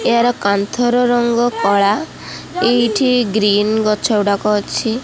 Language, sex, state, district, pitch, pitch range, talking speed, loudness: Odia, female, Odisha, Khordha, 225 Hz, 205-240 Hz, 105 wpm, -15 LUFS